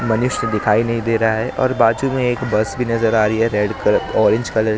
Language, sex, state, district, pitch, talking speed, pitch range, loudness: Hindi, male, Maharashtra, Mumbai Suburban, 115 Hz, 265 wpm, 110-120 Hz, -17 LUFS